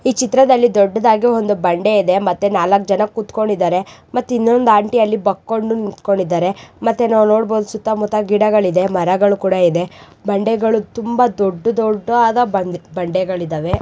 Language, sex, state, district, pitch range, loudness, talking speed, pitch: Kannada, female, Karnataka, Raichur, 190-225 Hz, -15 LUFS, 130 wpm, 210 Hz